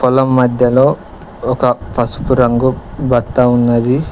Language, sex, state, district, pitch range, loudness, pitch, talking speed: Telugu, male, Telangana, Mahabubabad, 120-130 Hz, -13 LUFS, 125 Hz, 100 wpm